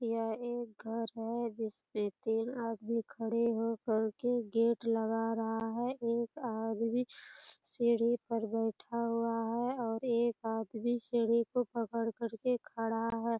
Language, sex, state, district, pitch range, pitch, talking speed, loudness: Hindi, female, Bihar, Purnia, 225-235 Hz, 230 Hz, 140 wpm, -35 LUFS